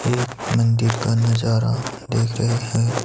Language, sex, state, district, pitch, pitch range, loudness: Hindi, male, Himachal Pradesh, Shimla, 115 Hz, 115-125 Hz, -20 LUFS